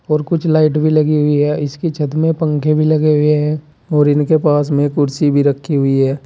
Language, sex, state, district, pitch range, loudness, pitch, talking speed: Hindi, male, Uttar Pradesh, Saharanpur, 145-155 Hz, -14 LUFS, 150 Hz, 230 wpm